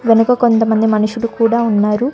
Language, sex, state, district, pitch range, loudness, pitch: Telugu, female, Telangana, Hyderabad, 220-235 Hz, -14 LUFS, 225 Hz